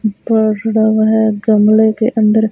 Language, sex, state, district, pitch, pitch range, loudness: Hindi, female, Rajasthan, Bikaner, 220 Hz, 215-220 Hz, -12 LUFS